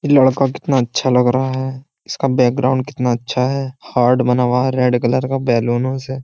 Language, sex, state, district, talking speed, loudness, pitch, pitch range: Hindi, male, Uttar Pradesh, Jyotiba Phule Nagar, 200 wpm, -17 LUFS, 130 Hz, 125-130 Hz